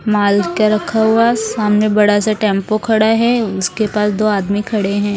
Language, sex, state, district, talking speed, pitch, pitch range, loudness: Hindi, female, Haryana, Rohtak, 185 wpm, 210 Hz, 205-220 Hz, -14 LUFS